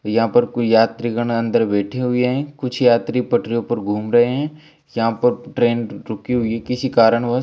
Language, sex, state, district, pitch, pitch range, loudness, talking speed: Hindi, male, Bihar, Kaimur, 120 Hz, 115-125 Hz, -18 LUFS, 195 wpm